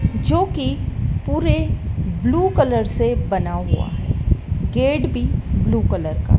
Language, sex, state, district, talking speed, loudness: Hindi, female, Madhya Pradesh, Dhar, 130 wpm, -20 LUFS